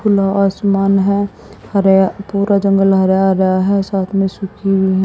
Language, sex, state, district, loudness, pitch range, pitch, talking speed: Hindi, female, Haryana, Jhajjar, -14 LUFS, 190-200 Hz, 195 Hz, 155 wpm